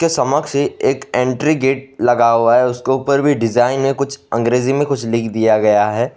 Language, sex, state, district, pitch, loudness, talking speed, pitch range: Hindi, male, Assam, Sonitpur, 130 Hz, -15 LUFS, 215 wpm, 115-140 Hz